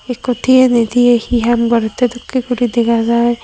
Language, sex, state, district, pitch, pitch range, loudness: Chakma, female, Tripura, Dhalai, 240 Hz, 235-250 Hz, -13 LUFS